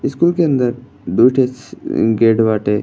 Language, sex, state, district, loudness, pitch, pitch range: Bhojpuri, male, Uttar Pradesh, Gorakhpur, -15 LUFS, 125 Hz, 110-130 Hz